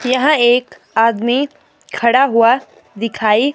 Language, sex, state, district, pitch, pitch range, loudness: Hindi, female, Himachal Pradesh, Shimla, 240 Hz, 230-265 Hz, -14 LUFS